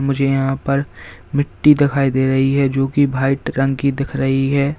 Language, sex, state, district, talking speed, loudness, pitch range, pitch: Hindi, male, Uttar Pradesh, Lalitpur, 200 wpm, -17 LUFS, 135-140 Hz, 135 Hz